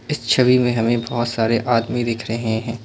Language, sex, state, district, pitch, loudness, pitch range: Hindi, male, Assam, Kamrup Metropolitan, 120 Hz, -19 LUFS, 115-120 Hz